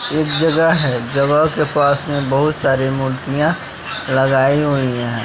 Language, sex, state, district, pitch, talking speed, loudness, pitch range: Hindi, male, Bihar, West Champaran, 140 Hz, 150 wpm, -16 LUFS, 135-150 Hz